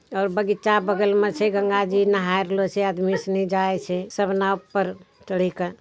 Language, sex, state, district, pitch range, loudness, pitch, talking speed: Angika, male, Bihar, Bhagalpur, 190-205 Hz, -22 LUFS, 195 Hz, 205 wpm